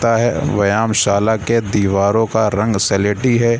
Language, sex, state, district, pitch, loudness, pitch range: Hindi, male, Bihar, Gaya, 110 Hz, -15 LUFS, 100-115 Hz